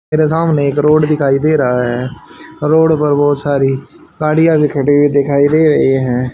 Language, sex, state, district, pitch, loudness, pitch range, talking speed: Hindi, male, Haryana, Charkhi Dadri, 145 Hz, -12 LUFS, 140-155 Hz, 190 wpm